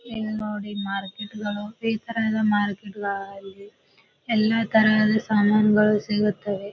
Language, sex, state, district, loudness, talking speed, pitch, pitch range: Kannada, female, Karnataka, Bijapur, -23 LUFS, 125 wpm, 210 Hz, 205-215 Hz